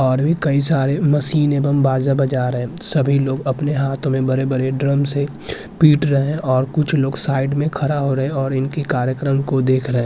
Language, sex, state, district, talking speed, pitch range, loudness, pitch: Hindi, male, Uttarakhand, Tehri Garhwal, 190 wpm, 130-145 Hz, -18 LUFS, 140 Hz